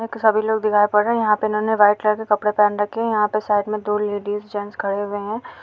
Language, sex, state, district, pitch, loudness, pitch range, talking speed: Hindi, female, Chhattisgarh, Kabirdham, 210 Hz, -20 LUFS, 205-215 Hz, 275 wpm